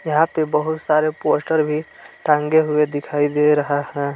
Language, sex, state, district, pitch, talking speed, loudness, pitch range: Hindi, male, Jharkhand, Palamu, 150 Hz, 175 wpm, -19 LUFS, 150-155 Hz